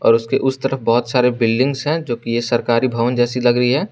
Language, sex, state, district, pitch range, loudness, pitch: Hindi, male, Jharkhand, Garhwa, 120-135 Hz, -17 LUFS, 125 Hz